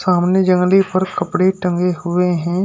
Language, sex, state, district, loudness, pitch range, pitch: Hindi, male, Uttar Pradesh, Shamli, -16 LUFS, 175-185 Hz, 180 Hz